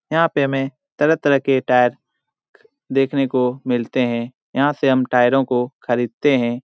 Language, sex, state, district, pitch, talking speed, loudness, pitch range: Hindi, male, Bihar, Jamui, 135 Hz, 170 wpm, -19 LUFS, 125-140 Hz